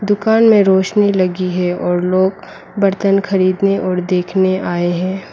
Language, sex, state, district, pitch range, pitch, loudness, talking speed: Hindi, female, Mizoram, Aizawl, 180-195 Hz, 190 Hz, -15 LUFS, 145 wpm